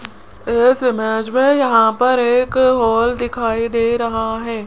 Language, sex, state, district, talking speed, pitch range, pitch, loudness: Hindi, female, Rajasthan, Jaipur, 140 wpm, 225-250 Hz, 235 Hz, -16 LUFS